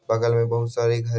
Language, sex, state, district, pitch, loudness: Hindi, male, Karnataka, Bijapur, 115 Hz, -22 LUFS